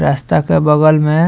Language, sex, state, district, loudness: Bhojpuri, male, Bihar, Muzaffarpur, -12 LUFS